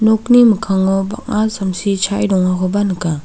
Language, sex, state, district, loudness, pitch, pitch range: Garo, female, Meghalaya, South Garo Hills, -15 LUFS, 200 Hz, 190-215 Hz